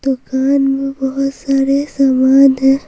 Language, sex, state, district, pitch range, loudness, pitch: Hindi, female, Bihar, Patna, 270-275 Hz, -13 LUFS, 270 Hz